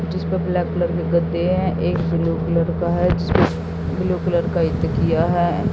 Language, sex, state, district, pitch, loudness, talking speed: Hindi, female, Haryana, Jhajjar, 165 Hz, -20 LUFS, 200 wpm